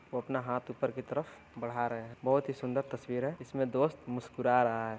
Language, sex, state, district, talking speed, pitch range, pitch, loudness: Hindi, male, Uttar Pradesh, Varanasi, 230 wpm, 120-130 Hz, 125 Hz, -34 LUFS